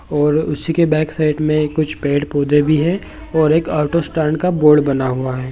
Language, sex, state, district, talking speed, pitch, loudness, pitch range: Hindi, male, Chhattisgarh, Bilaspur, 215 wpm, 155 Hz, -16 LUFS, 145-160 Hz